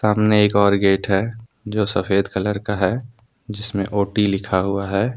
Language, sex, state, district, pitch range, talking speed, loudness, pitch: Hindi, male, Jharkhand, Deoghar, 100-105 Hz, 175 wpm, -20 LUFS, 105 Hz